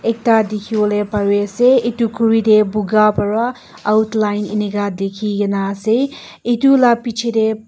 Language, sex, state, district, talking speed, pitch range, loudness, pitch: Nagamese, female, Nagaland, Kohima, 135 wpm, 210-230 Hz, -16 LUFS, 215 Hz